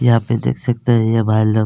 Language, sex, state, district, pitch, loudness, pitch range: Hindi, male, Chhattisgarh, Kabirdham, 115 Hz, -16 LUFS, 110-120 Hz